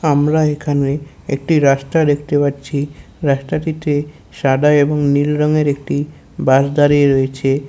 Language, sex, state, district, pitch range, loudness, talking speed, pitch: Bengali, male, West Bengal, North 24 Parganas, 140-150 Hz, -16 LUFS, 115 wpm, 145 Hz